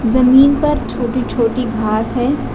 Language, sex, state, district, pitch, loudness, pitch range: Hindi, female, Uttar Pradesh, Lucknow, 250 Hz, -14 LUFS, 230-265 Hz